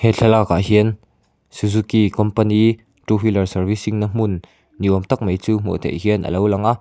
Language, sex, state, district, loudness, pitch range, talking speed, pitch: Mizo, male, Mizoram, Aizawl, -18 LUFS, 95-110 Hz, 195 wpm, 105 Hz